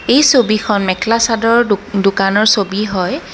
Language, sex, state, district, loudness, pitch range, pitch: Assamese, female, Assam, Kamrup Metropolitan, -13 LUFS, 195-230 Hz, 210 Hz